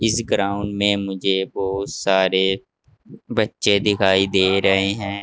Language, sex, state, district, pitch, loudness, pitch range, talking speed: Hindi, male, Uttar Pradesh, Saharanpur, 100 Hz, -19 LUFS, 95-100 Hz, 125 wpm